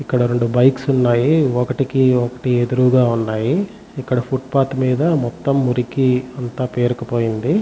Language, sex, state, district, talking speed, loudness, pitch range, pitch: Telugu, male, Andhra Pradesh, Chittoor, 125 wpm, -17 LUFS, 120-135 Hz, 125 Hz